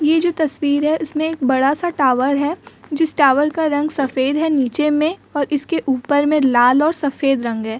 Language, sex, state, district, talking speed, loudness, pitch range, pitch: Hindi, female, Uttar Pradesh, Muzaffarnagar, 200 wpm, -17 LUFS, 270-315 Hz, 290 Hz